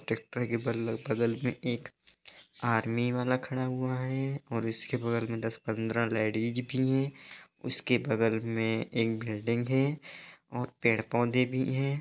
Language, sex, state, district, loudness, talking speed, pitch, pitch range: Hindi, male, Bihar, East Champaran, -31 LUFS, 150 wpm, 120 Hz, 115-130 Hz